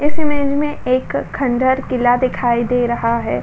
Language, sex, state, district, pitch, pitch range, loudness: Hindi, female, Uttar Pradesh, Budaun, 255 Hz, 240-280 Hz, -17 LUFS